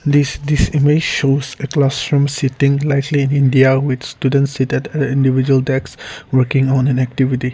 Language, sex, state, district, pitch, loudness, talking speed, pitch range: English, male, Nagaland, Kohima, 135 Hz, -15 LUFS, 150 wpm, 130-145 Hz